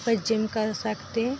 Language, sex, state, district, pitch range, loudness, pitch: Hindi, female, Bihar, Darbhanga, 215-230 Hz, -27 LUFS, 225 Hz